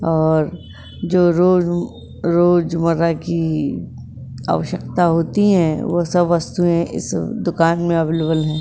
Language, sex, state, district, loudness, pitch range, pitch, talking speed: Hindi, female, Maharashtra, Chandrapur, -17 LUFS, 165-175 Hz, 170 Hz, 105 wpm